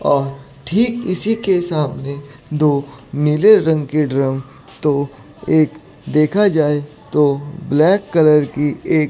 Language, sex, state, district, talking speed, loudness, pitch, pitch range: Hindi, male, Chandigarh, Chandigarh, 120 wpm, -16 LUFS, 150 Hz, 140-160 Hz